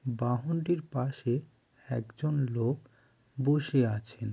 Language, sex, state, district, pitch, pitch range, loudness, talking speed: Bengali, male, West Bengal, Jalpaiguri, 125 Hz, 120-140 Hz, -32 LUFS, 85 wpm